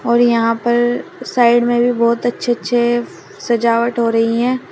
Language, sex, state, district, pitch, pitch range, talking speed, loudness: Hindi, female, Uttar Pradesh, Shamli, 240 Hz, 235-240 Hz, 165 wpm, -15 LUFS